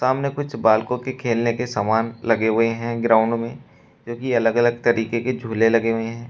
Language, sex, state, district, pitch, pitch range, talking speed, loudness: Hindi, male, Uttar Pradesh, Shamli, 115 Hz, 115-120 Hz, 200 wpm, -21 LUFS